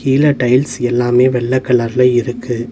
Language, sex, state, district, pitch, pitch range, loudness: Tamil, male, Tamil Nadu, Nilgiris, 125 Hz, 120-130 Hz, -14 LUFS